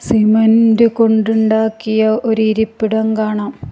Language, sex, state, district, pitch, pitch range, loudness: Malayalam, female, Kerala, Kasaragod, 220 Hz, 220-225 Hz, -14 LUFS